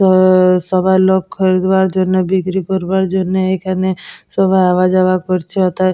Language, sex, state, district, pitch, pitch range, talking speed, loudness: Bengali, female, West Bengal, Jalpaiguri, 185 Hz, 185-190 Hz, 140 wpm, -14 LUFS